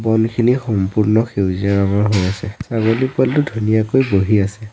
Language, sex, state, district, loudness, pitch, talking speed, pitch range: Assamese, male, Assam, Sonitpur, -17 LUFS, 110 Hz, 140 wpm, 100-115 Hz